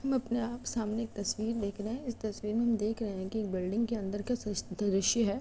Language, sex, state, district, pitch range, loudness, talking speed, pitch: Hindi, female, Uttar Pradesh, Jalaun, 205-235 Hz, -33 LUFS, 275 wpm, 220 Hz